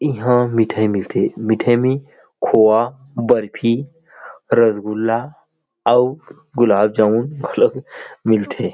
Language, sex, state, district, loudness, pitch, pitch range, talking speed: Chhattisgarhi, male, Chhattisgarh, Rajnandgaon, -17 LUFS, 120 Hz, 110-130 Hz, 95 wpm